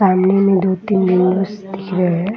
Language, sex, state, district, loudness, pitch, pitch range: Hindi, female, Bihar, Muzaffarpur, -16 LUFS, 190 Hz, 185-195 Hz